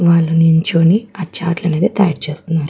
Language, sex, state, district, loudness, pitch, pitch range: Telugu, female, Andhra Pradesh, Guntur, -14 LUFS, 170 Hz, 160-180 Hz